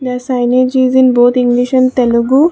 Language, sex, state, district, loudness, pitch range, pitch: English, female, Assam, Kamrup Metropolitan, -11 LUFS, 245-260 Hz, 255 Hz